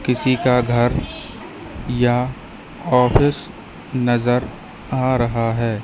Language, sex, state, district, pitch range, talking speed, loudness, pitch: Hindi, female, Madhya Pradesh, Katni, 120-130 Hz, 90 wpm, -19 LUFS, 125 Hz